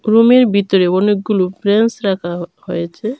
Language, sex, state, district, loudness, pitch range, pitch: Bengali, female, Tripura, Dhalai, -14 LUFS, 180-220 Hz, 200 Hz